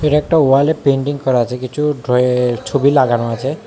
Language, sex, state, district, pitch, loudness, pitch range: Bengali, male, Tripura, West Tripura, 135 Hz, -15 LUFS, 125-150 Hz